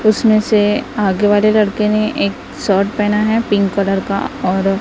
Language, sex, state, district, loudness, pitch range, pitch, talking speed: Hindi, female, Maharashtra, Gondia, -15 LUFS, 195-215 Hz, 205 Hz, 175 wpm